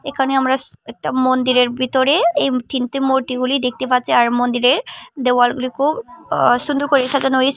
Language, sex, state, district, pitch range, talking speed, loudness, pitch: Bengali, female, Tripura, Unakoti, 250-275 Hz, 145 wpm, -17 LUFS, 260 Hz